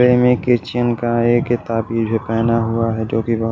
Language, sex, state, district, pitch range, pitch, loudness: Hindi, male, Odisha, Malkangiri, 115-120 Hz, 115 Hz, -17 LUFS